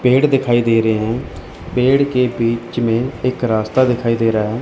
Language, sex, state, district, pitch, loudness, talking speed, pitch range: Hindi, male, Chandigarh, Chandigarh, 120 Hz, -16 LUFS, 195 wpm, 115-125 Hz